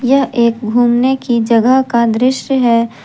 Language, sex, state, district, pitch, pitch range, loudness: Hindi, female, Jharkhand, Garhwa, 240 Hz, 235-260 Hz, -13 LUFS